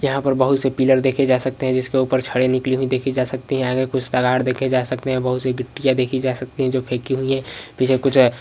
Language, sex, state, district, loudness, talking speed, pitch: Hindi, male, Uttarakhand, Uttarkashi, -19 LUFS, 285 wpm, 130 Hz